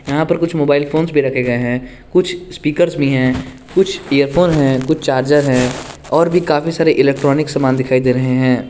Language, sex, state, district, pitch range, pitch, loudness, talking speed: Hindi, male, Jharkhand, Garhwa, 130-160 Hz, 140 Hz, -15 LUFS, 200 wpm